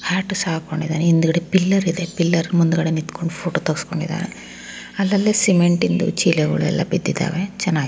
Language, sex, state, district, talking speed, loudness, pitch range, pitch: Kannada, female, Karnataka, Raichur, 120 wpm, -19 LUFS, 165-185 Hz, 175 Hz